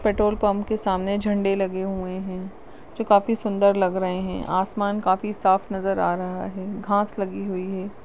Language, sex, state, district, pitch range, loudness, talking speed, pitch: Hindi, female, Rajasthan, Nagaur, 190-205 Hz, -24 LUFS, 185 wpm, 195 Hz